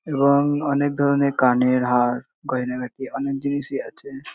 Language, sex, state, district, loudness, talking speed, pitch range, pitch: Bengali, male, West Bengal, North 24 Parganas, -21 LUFS, 125 wpm, 125-140 Hz, 140 Hz